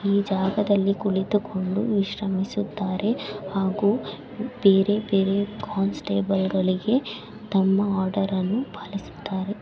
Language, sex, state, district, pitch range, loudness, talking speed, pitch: Kannada, female, Karnataka, Bellary, 190-210 Hz, -24 LUFS, 85 wpm, 200 Hz